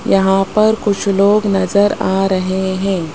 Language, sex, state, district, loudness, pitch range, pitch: Hindi, male, Rajasthan, Jaipur, -14 LUFS, 190-205 Hz, 195 Hz